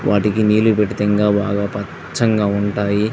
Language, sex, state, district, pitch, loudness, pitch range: Telugu, male, Andhra Pradesh, Visakhapatnam, 105 Hz, -17 LUFS, 100-105 Hz